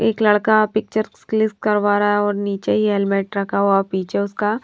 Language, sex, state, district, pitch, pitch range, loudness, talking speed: Hindi, female, Haryana, Rohtak, 205 Hz, 200-215 Hz, -19 LUFS, 195 wpm